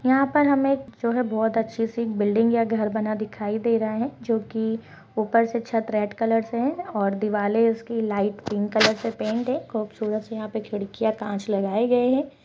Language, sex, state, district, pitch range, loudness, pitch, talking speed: Hindi, female, Chhattisgarh, Bastar, 215-235 Hz, -24 LUFS, 225 Hz, 205 wpm